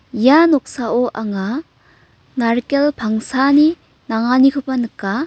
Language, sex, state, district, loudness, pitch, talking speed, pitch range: Garo, female, Meghalaya, North Garo Hills, -16 LUFS, 255 Hz, 80 wpm, 230-280 Hz